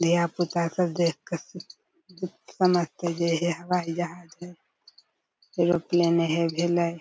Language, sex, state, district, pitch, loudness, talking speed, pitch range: Maithili, female, Bihar, Darbhanga, 175 Hz, -26 LUFS, 130 wpm, 170-175 Hz